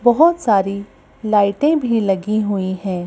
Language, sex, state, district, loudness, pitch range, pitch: Hindi, female, Madhya Pradesh, Bhopal, -17 LUFS, 195-240 Hz, 210 Hz